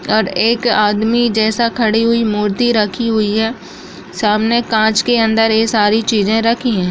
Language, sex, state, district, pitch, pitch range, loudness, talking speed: Hindi, female, Bihar, Kishanganj, 225 Hz, 215-230 Hz, -14 LUFS, 165 wpm